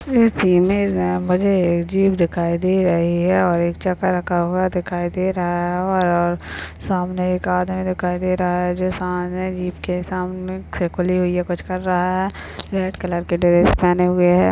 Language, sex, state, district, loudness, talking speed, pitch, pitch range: Hindi, male, Maharashtra, Nagpur, -19 LUFS, 185 wpm, 180 Hz, 175-185 Hz